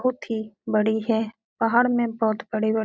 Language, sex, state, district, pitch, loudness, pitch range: Hindi, female, Uttar Pradesh, Etah, 220 Hz, -24 LUFS, 220-235 Hz